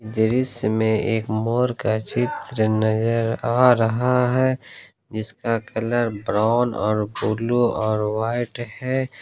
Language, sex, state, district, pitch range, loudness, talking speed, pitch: Hindi, male, Jharkhand, Ranchi, 110-120 Hz, -22 LUFS, 115 wpm, 115 Hz